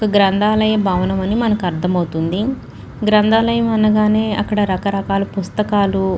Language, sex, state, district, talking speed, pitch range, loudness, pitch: Telugu, female, Andhra Pradesh, Chittoor, 95 wpm, 190-215 Hz, -16 LUFS, 205 Hz